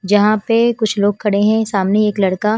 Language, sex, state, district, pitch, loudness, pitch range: Hindi, female, Himachal Pradesh, Shimla, 210 Hz, -15 LUFS, 205-215 Hz